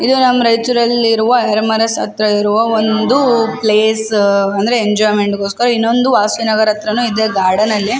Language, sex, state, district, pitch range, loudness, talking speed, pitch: Kannada, female, Karnataka, Raichur, 210-235 Hz, -13 LUFS, 150 wpm, 220 Hz